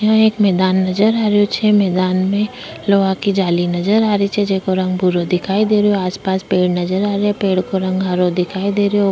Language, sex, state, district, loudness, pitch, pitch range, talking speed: Rajasthani, female, Rajasthan, Churu, -16 LUFS, 195 Hz, 185-205 Hz, 230 wpm